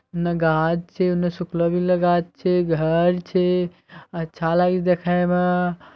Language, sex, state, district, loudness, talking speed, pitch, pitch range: Maithili, male, Bihar, Bhagalpur, -21 LUFS, 130 wpm, 175 Hz, 170-180 Hz